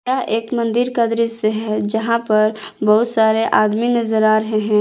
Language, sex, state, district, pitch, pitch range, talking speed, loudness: Hindi, female, Jharkhand, Palamu, 220 Hz, 215-230 Hz, 185 wpm, -17 LUFS